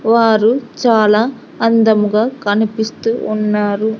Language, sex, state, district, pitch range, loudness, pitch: Telugu, female, Andhra Pradesh, Sri Satya Sai, 215-230 Hz, -14 LUFS, 220 Hz